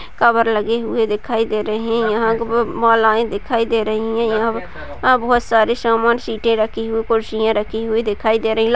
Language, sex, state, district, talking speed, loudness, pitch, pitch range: Hindi, female, Uttar Pradesh, Jalaun, 205 wpm, -17 LUFS, 225 Hz, 220-230 Hz